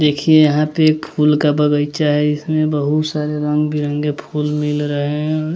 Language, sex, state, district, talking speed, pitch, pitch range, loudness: Hindi, male, Bihar, West Champaran, 185 wpm, 150 Hz, 150-155 Hz, -16 LUFS